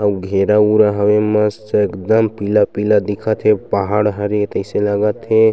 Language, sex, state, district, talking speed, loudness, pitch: Chhattisgarhi, male, Chhattisgarh, Sukma, 160 wpm, -16 LUFS, 105 Hz